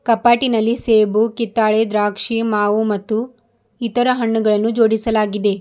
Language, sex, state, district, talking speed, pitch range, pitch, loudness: Kannada, female, Karnataka, Bidar, 95 wpm, 215-235 Hz, 225 Hz, -17 LUFS